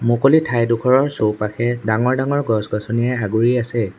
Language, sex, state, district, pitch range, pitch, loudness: Assamese, male, Assam, Sonitpur, 110-125 Hz, 120 Hz, -18 LUFS